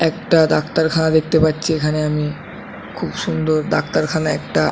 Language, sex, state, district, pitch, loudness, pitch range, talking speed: Bengali, male, West Bengal, Kolkata, 155 Hz, -18 LUFS, 150-160 Hz, 140 wpm